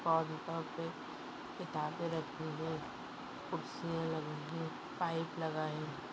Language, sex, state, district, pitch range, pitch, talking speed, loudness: Hindi, female, Maharashtra, Chandrapur, 155-165 Hz, 160 Hz, 115 wpm, -41 LUFS